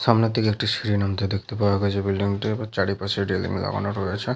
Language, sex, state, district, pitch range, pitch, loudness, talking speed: Bengali, male, West Bengal, Paschim Medinipur, 100-110 Hz, 100 Hz, -24 LUFS, 220 wpm